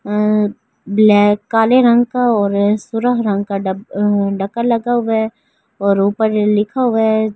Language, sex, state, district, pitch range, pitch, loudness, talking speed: Hindi, female, Delhi, New Delhi, 205-230 Hz, 215 Hz, -15 LUFS, 145 wpm